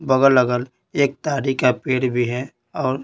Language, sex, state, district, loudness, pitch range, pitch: Hindi, male, Bihar, Patna, -20 LUFS, 125-135 Hz, 130 Hz